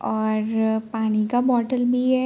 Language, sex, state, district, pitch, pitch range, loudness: Hindi, female, Uttar Pradesh, Varanasi, 225 Hz, 220-250 Hz, -22 LUFS